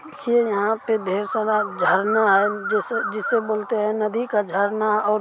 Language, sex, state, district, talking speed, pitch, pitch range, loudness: Hindi, male, Bihar, East Champaran, 170 wpm, 215 Hz, 205-220 Hz, -21 LUFS